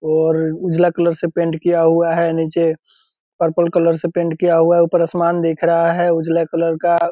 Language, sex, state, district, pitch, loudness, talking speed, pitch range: Hindi, male, Bihar, Purnia, 170 Hz, -16 LUFS, 210 wpm, 165-170 Hz